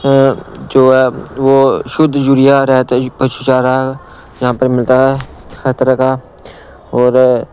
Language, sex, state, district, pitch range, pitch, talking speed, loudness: Hindi, male, Punjab, Pathankot, 130-135 Hz, 130 Hz, 135 wpm, -12 LUFS